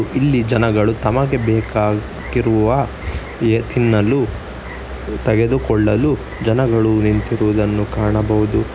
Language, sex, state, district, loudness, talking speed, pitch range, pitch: Kannada, male, Karnataka, Bangalore, -17 LUFS, 70 wpm, 105-115 Hz, 110 Hz